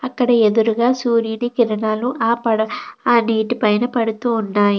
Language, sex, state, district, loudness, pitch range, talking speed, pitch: Telugu, female, Andhra Pradesh, Krishna, -18 LUFS, 220-240 Hz, 125 wpm, 230 Hz